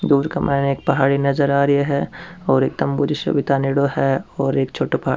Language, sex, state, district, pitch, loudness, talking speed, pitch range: Rajasthani, male, Rajasthan, Churu, 140 Hz, -19 LUFS, 230 wpm, 135-140 Hz